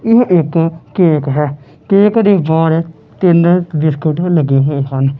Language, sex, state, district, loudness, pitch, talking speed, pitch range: Punjabi, male, Punjab, Kapurthala, -12 LUFS, 160 Hz, 150 wpm, 145-175 Hz